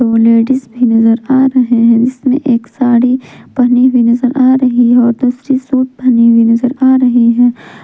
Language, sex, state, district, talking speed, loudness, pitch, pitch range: Hindi, female, Jharkhand, Palamu, 190 wpm, -10 LUFS, 245 Hz, 235-255 Hz